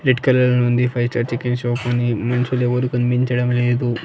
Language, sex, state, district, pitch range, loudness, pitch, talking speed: Telugu, male, Andhra Pradesh, Annamaya, 120-125 Hz, -18 LUFS, 125 Hz, 195 wpm